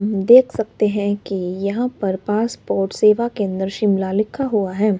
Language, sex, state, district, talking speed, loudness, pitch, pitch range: Hindi, male, Himachal Pradesh, Shimla, 155 wpm, -18 LUFS, 205 Hz, 195-220 Hz